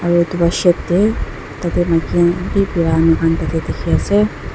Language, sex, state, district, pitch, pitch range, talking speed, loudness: Nagamese, female, Nagaland, Dimapur, 175 Hz, 165-180 Hz, 185 wpm, -16 LUFS